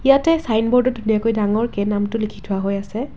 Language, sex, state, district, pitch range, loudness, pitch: Assamese, female, Assam, Kamrup Metropolitan, 205-245 Hz, -19 LUFS, 220 Hz